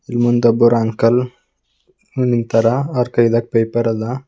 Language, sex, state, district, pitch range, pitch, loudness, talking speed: Kannada, male, Karnataka, Bidar, 115-125 Hz, 120 Hz, -16 LUFS, 125 wpm